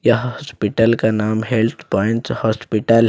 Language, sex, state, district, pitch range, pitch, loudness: Hindi, male, Jharkhand, Ranchi, 110-115 Hz, 115 Hz, -18 LUFS